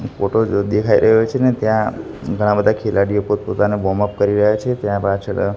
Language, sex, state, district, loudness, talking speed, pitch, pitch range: Gujarati, male, Gujarat, Gandhinagar, -17 LUFS, 195 wpm, 105 Hz, 100-110 Hz